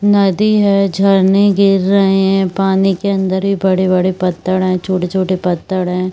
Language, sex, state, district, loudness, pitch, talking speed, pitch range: Chhattisgarhi, female, Chhattisgarh, Rajnandgaon, -13 LUFS, 190 Hz, 155 wpm, 185-195 Hz